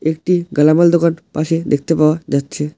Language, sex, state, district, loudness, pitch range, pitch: Bengali, male, West Bengal, Alipurduar, -15 LUFS, 150-170 Hz, 155 Hz